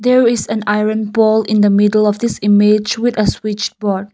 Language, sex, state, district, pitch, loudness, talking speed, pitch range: English, female, Nagaland, Kohima, 215 Hz, -14 LUFS, 215 wpm, 205-220 Hz